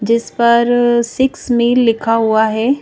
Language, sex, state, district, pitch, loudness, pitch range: Hindi, female, Madhya Pradesh, Bhopal, 235 Hz, -13 LUFS, 230-245 Hz